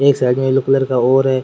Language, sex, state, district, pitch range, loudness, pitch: Rajasthani, male, Rajasthan, Churu, 130-135 Hz, -15 LUFS, 135 Hz